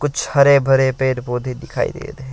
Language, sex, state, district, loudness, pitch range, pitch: Hindi, male, Assam, Kamrup Metropolitan, -17 LUFS, 130-140 Hz, 135 Hz